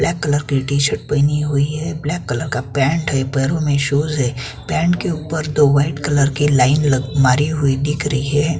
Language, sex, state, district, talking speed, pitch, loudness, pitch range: Hindi, male, Chhattisgarh, Kabirdham, 215 wpm, 145 Hz, -17 LUFS, 140-150 Hz